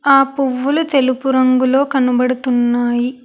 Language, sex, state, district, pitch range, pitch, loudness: Telugu, female, Telangana, Hyderabad, 250-270 Hz, 260 Hz, -15 LUFS